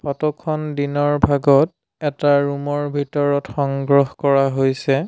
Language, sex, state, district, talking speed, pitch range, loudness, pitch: Assamese, male, Assam, Sonitpur, 130 wpm, 140-145 Hz, -19 LUFS, 145 Hz